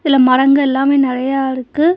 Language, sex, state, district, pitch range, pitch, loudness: Tamil, female, Tamil Nadu, Nilgiris, 260-280 Hz, 270 Hz, -13 LUFS